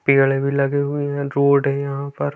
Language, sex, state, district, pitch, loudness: Hindi, male, Rajasthan, Nagaur, 140 Hz, -19 LUFS